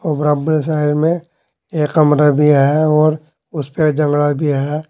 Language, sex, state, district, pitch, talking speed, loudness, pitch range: Hindi, male, Uttar Pradesh, Saharanpur, 150 Hz, 145 wpm, -15 LUFS, 150-155 Hz